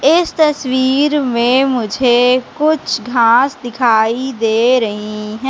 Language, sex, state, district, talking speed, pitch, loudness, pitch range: Hindi, female, Madhya Pradesh, Katni, 110 wpm, 255 Hz, -14 LUFS, 230-270 Hz